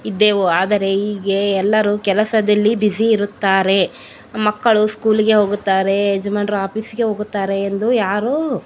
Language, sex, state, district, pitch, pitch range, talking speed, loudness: Kannada, female, Karnataka, Bellary, 210 Hz, 195-215 Hz, 125 wpm, -17 LUFS